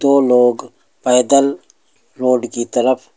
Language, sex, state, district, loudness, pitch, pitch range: Hindi, male, Uttar Pradesh, Lucknow, -15 LUFS, 125 Hz, 125-135 Hz